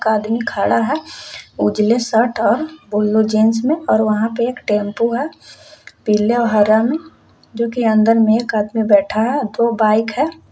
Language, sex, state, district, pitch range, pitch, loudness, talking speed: Hindi, female, Jharkhand, Palamu, 215-240 Hz, 225 Hz, -16 LUFS, 175 wpm